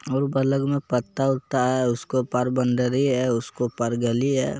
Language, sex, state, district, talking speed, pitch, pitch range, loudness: Magahi, male, Bihar, Jamui, 195 wpm, 130 Hz, 125-135 Hz, -23 LUFS